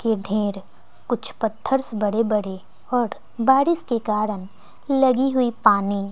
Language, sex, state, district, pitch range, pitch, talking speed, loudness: Hindi, female, Bihar, West Champaran, 205-255 Hz, 225 Hz, 125 wpm, -21 LUFS